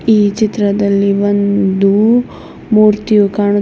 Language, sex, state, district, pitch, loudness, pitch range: Kannada, female, Karnataka, Bidar, 205 Hz, -12 LUFS, 200-215 Hz